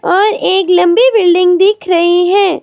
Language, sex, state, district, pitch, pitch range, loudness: Hindi, female, Himachal Pradesh, Shimla, 375 Hz, 355-400 Hz, -10 LUFS